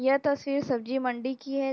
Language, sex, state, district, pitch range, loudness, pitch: Hindi, female, Uttar Pradesh, Jyotiba Phule Nagar, 260-275 Hz, -29 LUFS, 270 Hz